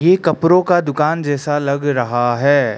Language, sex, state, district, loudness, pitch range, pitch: Hindi, male, Arunachal Pradesh, Lower Dibang Valley, -16 LUFS, 140-165 Hz, 145 Hz